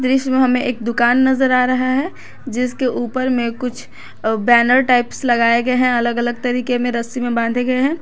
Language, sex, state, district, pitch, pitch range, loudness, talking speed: Hindi, female, Jharkhand, Garhwa, 250 Hz, 240-255 Hz, -17 LUFS, 195 wpm